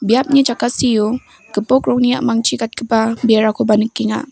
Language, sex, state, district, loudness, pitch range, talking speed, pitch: Garo, female, Meghalaya, West Garo Hills, -15 LUFS, 220-245 Hz, 110 wpm, 235 Hz